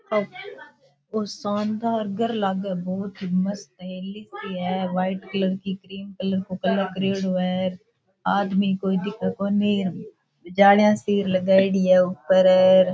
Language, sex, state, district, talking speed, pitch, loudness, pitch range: Rajasthani, female, Rajasthan, Churu, 135 wpm, 190 Hz, -22 LUFS, 185-205 Hz